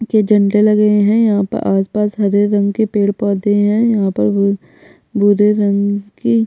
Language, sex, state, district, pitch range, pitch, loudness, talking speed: Hindi, female, Chhattisgarh, Bastar, 200-210 Hz, 205 Hz, -14 LUFS, 205 wpm